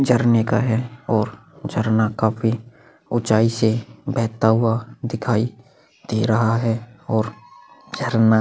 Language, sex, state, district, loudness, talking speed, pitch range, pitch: Hindi, male, Maharashtra, Aurangabad, -21 LUFS, 120 wpm, 110-120 Hz, 115 Hz